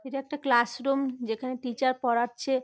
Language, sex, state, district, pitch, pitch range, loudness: Bengali, female, West Bengal, North 24 Parganas, 255 Hz, 240-270 Hz, -28 LUFS